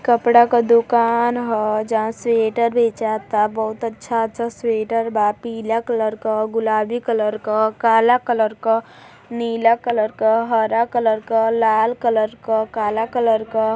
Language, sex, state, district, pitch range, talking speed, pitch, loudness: Hindi, female, Uttar Pradesh, Deoria, 220-235 Hz, 145 wpm, 225 Hz, -18 LUFS